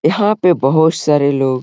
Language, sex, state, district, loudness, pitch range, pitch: Hindi, male, Bihar, Gaya, -13 LUFS, 135-175 Hz, 155 Hz